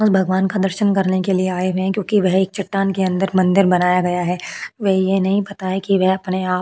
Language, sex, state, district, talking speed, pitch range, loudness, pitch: Hindi, female, Maharashtra, Chandrapur, 255 wpm, 185-195 Hz, -18 LUFS, 190 Hz